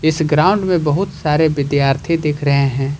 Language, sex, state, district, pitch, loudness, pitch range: Hindi, male, Jharkhand, Ranchi, 150 Hz, -16 LUFS, 140-160 Hz